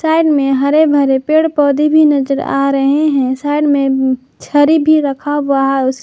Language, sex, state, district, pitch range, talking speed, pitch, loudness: Hindi, female, Jharkhand, Garhwa, 270-300 Hz, 180 wpm, 285 Hz, -12 LUFS